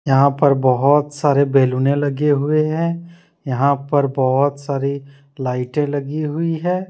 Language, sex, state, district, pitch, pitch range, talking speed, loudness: Hindi, male, Jharkhand, Deoghar, 140 Hz, 140-155 Hz, 140 wpm, -18 LUFS